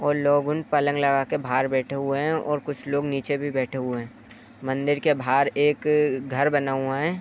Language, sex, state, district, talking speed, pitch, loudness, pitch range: Hindi, male, Uttar Pradesh, Etah, 200 wpm, 140 Hz, -24 LUFS, 135-145 Hz